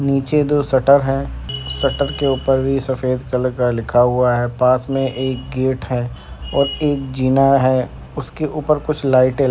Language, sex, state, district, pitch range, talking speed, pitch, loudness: Hindi, male, Uttar Pradesh, Etah, 125-135 Hz, 175 wpm, 130 Hz, -17 LUFS